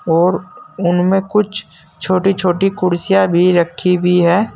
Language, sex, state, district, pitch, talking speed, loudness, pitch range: Hindi, male, Uttar Pradesh, Saharanpur, 180 Hz, 130 wpm, -15 LUFS, 175-195 Hz